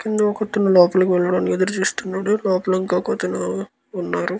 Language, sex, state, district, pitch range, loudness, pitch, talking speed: Telugu, male, Andhra Pradesh, Guntur, 180-200 Hz, -19 LUFS, 185 Hz, 165 wpm